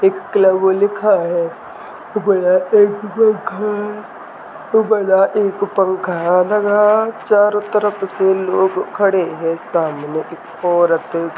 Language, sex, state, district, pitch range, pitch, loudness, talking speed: Hindi, male, Chhattisgarh, Balrampur, 180-210 Hz, 200 Hz, -16 LUFS, 120 wpm